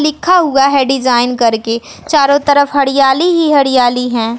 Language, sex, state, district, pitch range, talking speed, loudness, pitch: Hindi, female, Bihar, West Champaran, 245-285 Hz, 150 wpm, -11 LUFS, 275 Hz